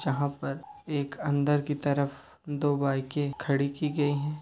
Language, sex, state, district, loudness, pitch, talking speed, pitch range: Hindi, male, Uttar Pradesh, Deoria, -29 LUFS, 145 Hz, 165 wpm, 140-150 Hz